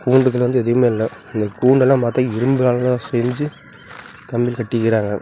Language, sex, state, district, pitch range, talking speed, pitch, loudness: Tamil, male, Tamil Nadu, Namakkal, 115-130 Hz, 140 wpm, 125 Hz, -18 LUFS